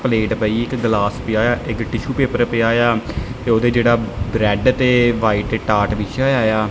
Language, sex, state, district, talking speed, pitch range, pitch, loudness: Punjabi, male, Punjab, Kapurthala, 215 wpm, 110-120 Hz, 115 Hz, -17 LUFS